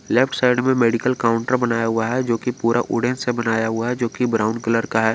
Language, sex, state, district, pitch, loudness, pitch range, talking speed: Hindi, male, Jharkhand, Garhwa, 115 Hz, -20 LUFS, 115-125 Hz, 255 wpm